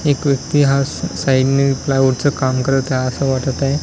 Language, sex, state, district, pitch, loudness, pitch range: Marathi, male, Maharashtra, Washim, 135 Hz, -16 LUFS, 130-140 Hz